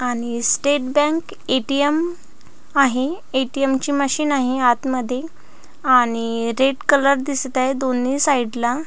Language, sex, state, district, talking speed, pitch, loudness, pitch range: Marathi, female, Maharashtra, Pune, 130 wpm, 265 Hz, -19 LUFS, 250-285 Hz